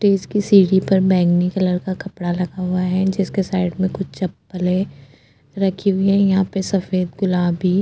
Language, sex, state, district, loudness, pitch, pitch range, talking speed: Hindi, female, Goa, North and South Goa, -19 LUFS, 185 Hz, 180-195 Hz, 185 wpm